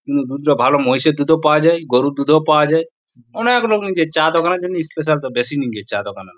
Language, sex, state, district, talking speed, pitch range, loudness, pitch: Bengali, male, West Bengal, Purulia, 225 wpm, 135-165 Hz, -16 LUFS, 150 Hz